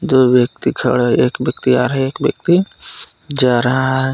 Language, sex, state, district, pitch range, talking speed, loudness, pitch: Hindi, male, Jharkhand, Palamu, 125-140 Hz, 190 wpm, -15 LUFS, 130 Hz